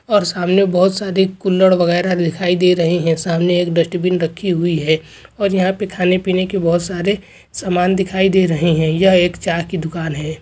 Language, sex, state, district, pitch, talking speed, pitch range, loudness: Hindi, male, West Bengal, Jhargram, 180 Hz, 195 wpm, 170-190 Hz, -16 LUFS